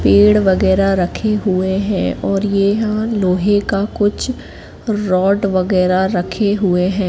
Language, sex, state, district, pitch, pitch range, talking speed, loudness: Hindi, female, Madhya Pradesh, Katni, 195 Hz, 190-205 Hz, 135 wpm, -15 LUFS